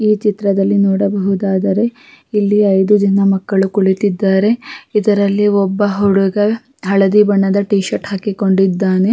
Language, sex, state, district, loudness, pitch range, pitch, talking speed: Kannada, female, Karnataka, Raichur, -14 LUFS, 195-210 Hz, 200 Hz, 105 wpm